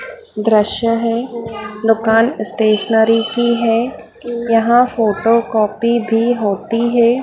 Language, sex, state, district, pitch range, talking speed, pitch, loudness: Hindi, female, Madhya Pradesh, Dhar, 220-235 Hz, 100 wpm, 230 Hz, -15 LUFS